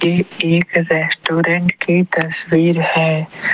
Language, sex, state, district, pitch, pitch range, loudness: Hindi, male, Assam, Kamrup Metropolitan, 170 Hz, 165-175 Hz, -15 LUFS